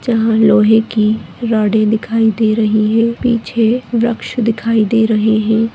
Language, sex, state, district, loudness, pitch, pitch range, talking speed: Hindi, female, Goa, North and South Goa, -13 LUFS, 225 Hz, 220-230 Hz, 145 wpm